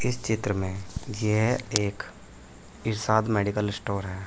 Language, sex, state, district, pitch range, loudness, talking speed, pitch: Hindi, male, Uttar Pradesh, Saharanpur, 95-110 Hz, -27 LUFS, 125 wpm, 105 Hz